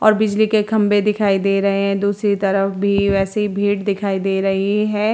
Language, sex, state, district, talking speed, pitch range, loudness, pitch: Hindi, female, Uttar Pradesh, Jalaun, 220 wpm, 195-210 Hz, -17 LUFS, 200 Hz